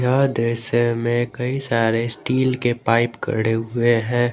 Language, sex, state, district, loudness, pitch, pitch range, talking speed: Hindi, male, Jharkhand, Garhwa, -20 LUFS, 120 Hz, 115-125 Hz, 150 wpm